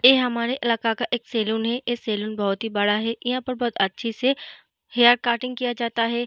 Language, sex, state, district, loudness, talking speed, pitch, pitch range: Hindi, female, Uttar Pradesh, Jalaun, -23 LUFS, 220 wpm, 235 Hz, 225-245 Hz